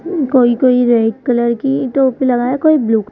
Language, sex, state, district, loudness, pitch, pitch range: Hindi, female, Madhya Pradesh, Bhopal, -13 LUFS, 255 Hz, 240-270 Hz